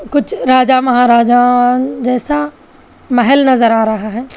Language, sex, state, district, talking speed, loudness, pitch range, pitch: Hindi, female, Telangana, Hyderabad, 125 wpm, -11 LUFS, 245-265 Hz, 250 Hz